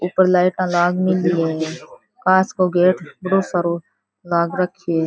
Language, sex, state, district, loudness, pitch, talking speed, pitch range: Rajasthani, female, Rajasthan, Churu, -18 LUFS, 180 Hz, 155 wpm, 170-185 Hz